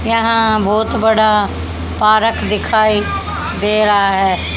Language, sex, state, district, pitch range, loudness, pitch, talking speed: Hindi, female, Haryana, Jhajjar, 200-220 Hz, -14 LUFS, 215 Hz, 105 wpm